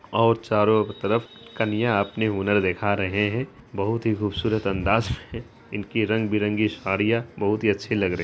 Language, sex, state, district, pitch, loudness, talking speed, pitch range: Hindi, female, Bihar, Araria, 105 Hz, -24 LUFS, 165 wpm, 100-115 Hz